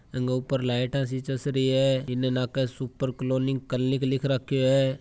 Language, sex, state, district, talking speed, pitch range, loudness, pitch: Marwari, male, Rajasthan, Churu, 170 wpm, 130-135 Hz, -26 LUFS, 130 Hz